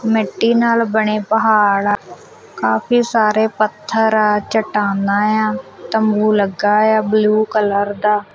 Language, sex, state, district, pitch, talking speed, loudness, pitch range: Punjabi, female, Punjab, Kapurthala, 215 Hz, 110 wpm, -15 LUFS, 205-220 Hz